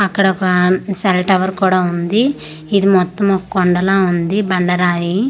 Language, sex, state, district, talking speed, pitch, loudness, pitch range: Telugu, female, Andhra Pradesh, Manyam, 135 wpm, 185 Hz, -15 LUFS, 180-195 Hz